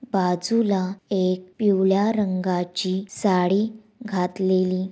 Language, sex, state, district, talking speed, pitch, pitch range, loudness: Marathi, female, Maharashtra, Dhule, 75 wpm, 190 Hz, 185-210 Hz, -23 LUFS